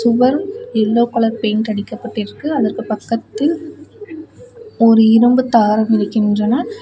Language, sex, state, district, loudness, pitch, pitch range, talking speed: Tamil, female, Tamil Nadu, Namakkal, -15 LUFS, 235 Hz, 220-310 Hz, 95 wpm